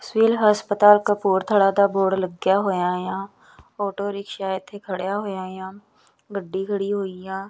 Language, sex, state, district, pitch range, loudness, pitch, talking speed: Punjabi, female, Punjab, Kapurthala, 190-205 Hz, -22 LUFS, 195 Hz, 145 wpm